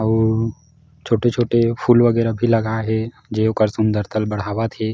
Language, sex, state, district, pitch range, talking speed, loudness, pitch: Chhattisgarhi, male, Chhattisgarh, Jashpur, 110-115 Hz, 145 wpm, -19 LUFS, 110 Hz